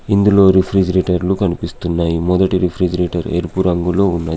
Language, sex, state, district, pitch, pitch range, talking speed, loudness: Telugu, male, Telangana, Adilabad, 90 Hz, 85-95 Hz, 110 wpm, -15 LUFS